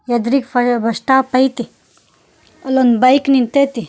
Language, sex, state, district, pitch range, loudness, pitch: Kannada, female, Karnataka, Koppal, 240-265 Hz, -14 LUFS, 255 Hz